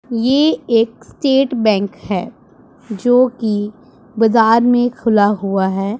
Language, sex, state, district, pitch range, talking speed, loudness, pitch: Hindi, female, Punjab, Pathankot, 210-245 Hz, 120 wpm, -15 LUFS, 230 Hz